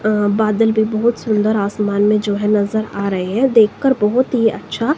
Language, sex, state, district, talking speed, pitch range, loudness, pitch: Hindi, female, Himachal Pradesh, Shimla, 205 wpm, 210-225 Hz, -16 LUFS, 215 Hz